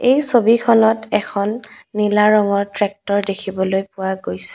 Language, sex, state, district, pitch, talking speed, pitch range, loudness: Assamese, female, Assam, Kamrup Metropolitan, 205 Hz, 120 wpm, 195-220 Hz, -17 LUFS